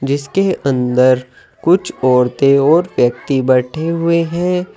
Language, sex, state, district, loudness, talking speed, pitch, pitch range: Hindi, male, Uttar Pradesh, Saharanpur, -14 LUFS, 115 wpm, 140 Hz, 130-170 Hz